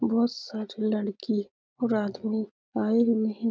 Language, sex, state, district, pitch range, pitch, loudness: Hindi, female, Bihar, Lakhisarai, 215-230 Hz, 220 Hz, -28 LUFS